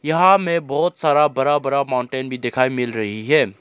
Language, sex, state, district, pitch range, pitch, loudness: Hindi, male, Arunachal Pradesh, Lower Dibang Valley, 125-155 Hz, 140 Hz, -19 LUFS